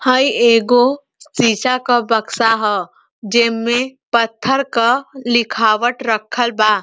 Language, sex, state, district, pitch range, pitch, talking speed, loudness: Bhojpuri, female, Uttar Pradesh, Ghazipur, 225-255 Hz, 235 Hz, 105 wpm, -15 LUFS